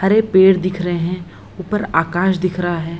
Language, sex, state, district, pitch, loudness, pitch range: Hindi, female, Bihar, Lakhisarai, 185 Hz, -17 LUFS, 175-190 Hz